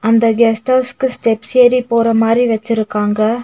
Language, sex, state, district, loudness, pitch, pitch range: Tamil, female, Tamil Nadu, Nilgiris, -14 LUFS, 230 Hz, 225-245 Hz